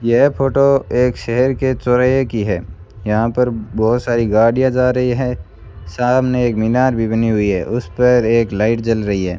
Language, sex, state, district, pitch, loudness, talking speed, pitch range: Hindi, male, Rajasthan, Bikaner, 115 Hz, -16 LUFS, 185 wpm, 110-125 Hz